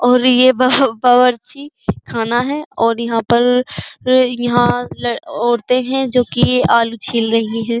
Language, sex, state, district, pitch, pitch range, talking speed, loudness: Hindi, female, Uttar Pradesh, Jyotiba Phule Nagar, 245 Hz, 235-255 Hz, 140 wpm, -15 LUFS